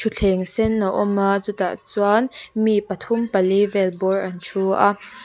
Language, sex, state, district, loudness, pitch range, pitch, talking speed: Mizo, female, Mizoram, Aizawl, -20 LUFS, 195-220 Hz, 200 Hz, 170 wpm